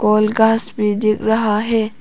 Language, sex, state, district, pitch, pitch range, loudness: Hindi, female, Arunachal Pradesh, Papum Pare, 215 Hz, 210-220 Hz, -16 LUFS